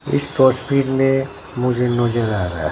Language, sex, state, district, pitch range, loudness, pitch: Hindi, male, Bihar, Katihar, 120-135 Hz, -18 LUFS, 125 Hz